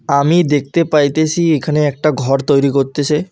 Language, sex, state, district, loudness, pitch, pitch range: Bengali, male, West Bengal, Alipurduar, -14 LUFS, 150 Hz, 140-155 Hz